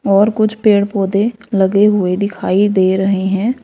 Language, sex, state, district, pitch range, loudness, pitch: Hindi, female, Haryana, Rohtak, 195-215 Hz, -14 LUFS, 200 Hz